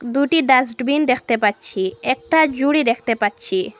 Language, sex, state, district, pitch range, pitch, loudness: Bengali, female, Assam, Hailakandi, 225-280 Hz, 250 Hz, -18 LUFS